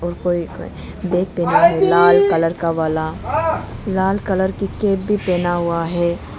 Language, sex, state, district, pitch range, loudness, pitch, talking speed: Hindi, female, Arunachal Pradesh, Lower Dibang Valley, 170-190 Hz, -18 LUFS, 175 Hz, 150 wpm